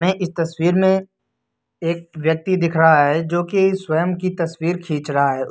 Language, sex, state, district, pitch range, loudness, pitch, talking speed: Hindi, male, Uttar Pradesh, Lucknow, 160-180 Hz, -19 LUFS, 170 Hz, 185 wpm